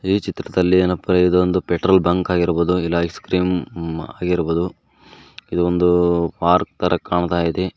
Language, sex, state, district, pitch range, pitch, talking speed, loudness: Kannada, male, Karnataka, Koppal, 85-90 Hz, 90 Hz, 125 wpm, -19 LUFS